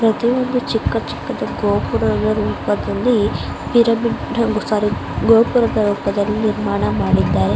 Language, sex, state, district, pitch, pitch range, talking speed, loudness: Kannada, female, Karnataka, Mysore, 225 Hz, 210-235 Hz, 80 wpm, -18 LUFS